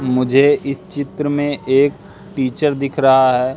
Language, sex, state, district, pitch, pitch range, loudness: Hindi, male, Madhya Pradesh, Katni, 140 Hz, 130-145 Hz, -16 LUFS